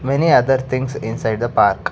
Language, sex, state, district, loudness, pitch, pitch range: English, male, Karnataka, Bangalore, -17 LUFS, 130 Hz, 120-135 Hz